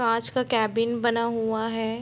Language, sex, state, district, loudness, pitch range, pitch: Hindi, female, Bihar, Muzaffarpur, -25 LUFS, 225-235 Hz, 230 Hz